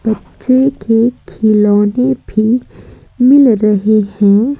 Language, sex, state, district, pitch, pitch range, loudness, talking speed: Hindi, female, Madhya Pradesh, Umaria, 220 Hz, 210-250 Hz, -12 LUFS, 90 wpm